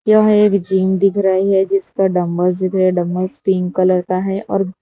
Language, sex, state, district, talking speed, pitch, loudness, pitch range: Hindi, female, Gujarat, Valsad, 225 wpm, 190 Hz, -15 LUFS, 185-195 Hz